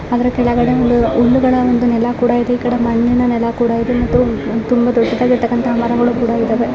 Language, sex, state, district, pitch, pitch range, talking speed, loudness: Kannada, female, Karnataka, Mysore, 240 Hz, 235-245 Hz, 160 wpm, -14 LUFS